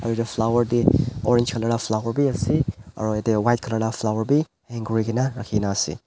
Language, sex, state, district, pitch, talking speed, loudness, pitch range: Nagamese, male, Nagaland, Dimapur, 115 Hz, 200 wpm, -22 LUFS, 110-120 Hz